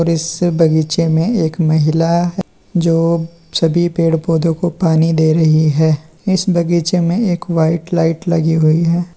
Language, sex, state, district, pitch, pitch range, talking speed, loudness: Hindi, male, Uttar Pradesh, Lalitpur, 165 Hz, 160-175 Hz, 155 wpm, -14 LUFS